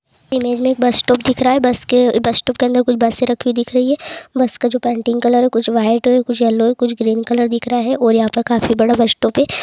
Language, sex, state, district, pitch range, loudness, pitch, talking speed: Hindi, female, West Bengal, Paschim Medinipur, 230-250 Hz, -15 LUFS, 240 Hz, 280 wpm